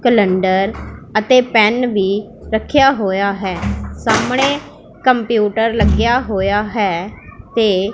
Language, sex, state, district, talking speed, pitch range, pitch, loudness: Punjabi, female, Punjab, Pathankot, 105 wpm, 200-240 Hz, 220 Hz, -15 LUFS